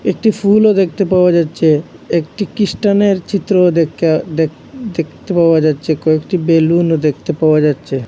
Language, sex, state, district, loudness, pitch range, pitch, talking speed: Bengali, male, Assam, Hailakandi, -14 LUFS, 155-200 Hz, 170 Hz, 135 wpm